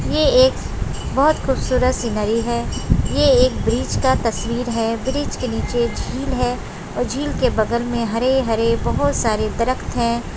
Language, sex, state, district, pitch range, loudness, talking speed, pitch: Hindi, female, Chhattisgarh, Bastar, 230-255 Hz, -19 LUFS, 155 wpm, 235 Hz